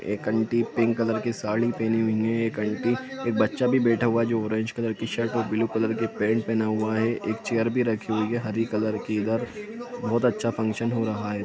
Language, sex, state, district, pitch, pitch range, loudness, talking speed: Hindi, male, Jharkhand, Sahebganj, 115 Hz, 110-115 Hz, -25 LUFS, 245 wpm